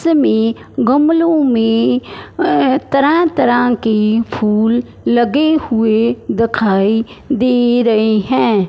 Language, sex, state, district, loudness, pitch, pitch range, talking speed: Hindi, male, Punjab, Fazilka, -14 LUFS, 240 Hz, 220-275 Hz, 95 wpm